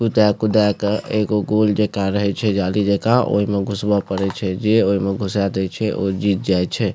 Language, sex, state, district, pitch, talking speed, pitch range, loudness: Maithili, male, Bihar, Supaul, 100 Hz, 205 wpm, 100-105 Hz, -19 LUFS